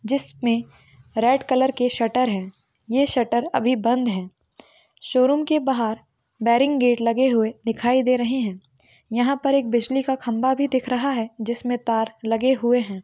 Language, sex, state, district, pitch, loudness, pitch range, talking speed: Hindi, female, Chhattisgarh, Raigarh, 240 Hz, -21 LUFS, 225-260 Hz, 170 wpm